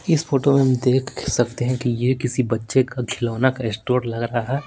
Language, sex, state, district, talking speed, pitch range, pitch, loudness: Hindi, male, Bihar, Patna, 230 wpm, 120-135 Hz, 125 Hz, -21 LUFS